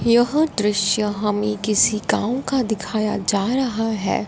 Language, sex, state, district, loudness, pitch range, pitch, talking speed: Hindi, female, Punjab, Fazilka, -20 LUFS, 210-240 Hz, 215 Hz, 140 wpm